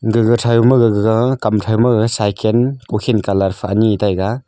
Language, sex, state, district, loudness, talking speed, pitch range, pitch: Wancho, male, Arunachal Pradesh, Longding, -15 LUFS, 160 wpm, 105-120 Hz, 110 Hz